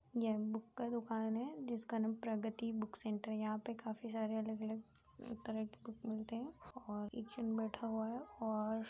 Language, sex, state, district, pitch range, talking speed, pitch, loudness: Hindi, female, Uttar Pradesh, Jyotiba Phule Nagar, 220-230 Hz, 195 wpm, 220 Hz, -43 LUFS